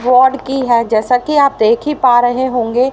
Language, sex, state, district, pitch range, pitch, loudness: Hindi, female, Haryana, Rohtak, 235-265 Hz, 250 Hz, -13 LUFS